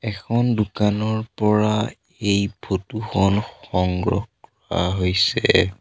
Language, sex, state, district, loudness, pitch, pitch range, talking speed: Assamese, male, Assam, Sonitpur, -21 LUFS, 105 Hz, 95-110 Hz, 95 wpm